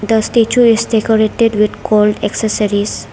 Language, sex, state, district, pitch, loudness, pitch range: English, female, Arunachal Pradesh, Lower Dibang Valley, 220 Hz, -13 LUFS, 210-225 Hz